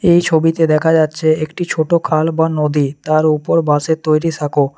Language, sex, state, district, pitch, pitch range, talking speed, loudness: Bengali, male, West Bengal, Alipurduar, 155 Hz, 155-165 Hz, 175 wpm, -15 LUFS